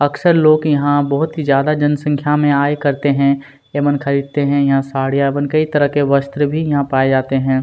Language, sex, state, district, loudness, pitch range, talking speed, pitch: Hindi, male, Chhattisgarh, Kabirdham, -15 LUFS, 140-145 Hz, 205 wpm, 145 Hz